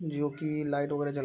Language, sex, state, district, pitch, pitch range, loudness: Hindi, male, Bihar, Araria, 145 Hz, 145-150 Hz, -32 LUFS